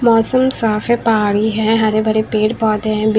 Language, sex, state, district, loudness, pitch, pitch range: Hindi, female, Haryana, Charkhi Dadri, -15 LUFS, 220 Hz, 215-225 Hz